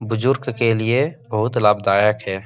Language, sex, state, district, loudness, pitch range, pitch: Hindi, male, Bihar, Jahanabad, -18 LUFS, 105-120 Hz, 115 Hz